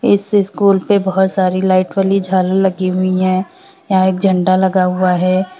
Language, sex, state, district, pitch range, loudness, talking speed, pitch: Hindi, female, Uttar Pradesh, Lalitpur, 185-195 Hz, -14 LUFS, 180 wpm, 185 Hz